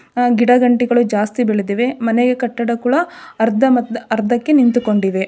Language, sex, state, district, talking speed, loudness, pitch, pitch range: Kannada, female, Karnataka, Dharwad, 125 wpm, -15 LUFS, 240 Hz, 225-245 Hz